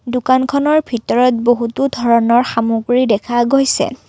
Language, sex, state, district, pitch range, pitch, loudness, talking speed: Assamese, female, Assam, Kamrup Metropolitan, 235-260 Hz, 245 Hz, -14 LUFS, 105 wpm